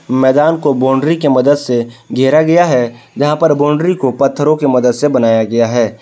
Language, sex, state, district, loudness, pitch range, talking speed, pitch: Hindi, male, Jharkhand, Palamu, -12 LUFS, 120-150 Hz, 200 wpm, 135 Hz